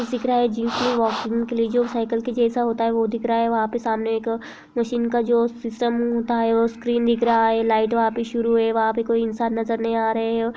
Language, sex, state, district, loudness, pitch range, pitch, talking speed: Hindi, female, Bihar, Sitamarhi, -21 LUFS, 225-235 Hz, 230 Hz, 245 wpm